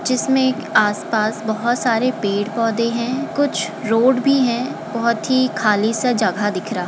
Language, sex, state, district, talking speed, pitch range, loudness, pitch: Hindi, female, Uttar Pradesh, Jalaun, 175 wpm, 215-255 Hz, -18 LUFS, 230 Hz